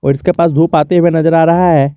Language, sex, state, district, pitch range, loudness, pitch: Hindi, male, Jharkhand, Garhwa, 155-170 Hz, -11 LUFS, 165 Hz